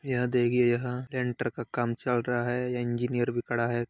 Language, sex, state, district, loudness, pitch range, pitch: Hindi, male, Uttar Pradesh, Hamirpur, -29 LUFS, 120-125 Hz, 120 Hz